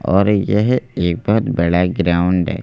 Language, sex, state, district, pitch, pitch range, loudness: Hindi, male, Madhya Pradesh, Bhopal, 95 Hz, 90-105 Hz, -16 LUFS